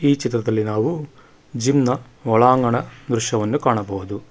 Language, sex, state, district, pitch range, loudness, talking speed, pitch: Kannada, male, Karnataka, Bangalore, 110-130 Hz, -20 LUFS, 110 wpm, 120 Hz